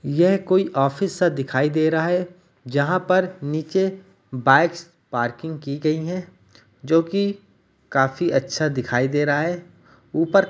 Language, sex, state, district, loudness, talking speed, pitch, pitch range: Hindi, male, Uttar Pradesh, Ghazipur, -21 LUFS, 150 wpm, 160 Hz, 135-180 Hz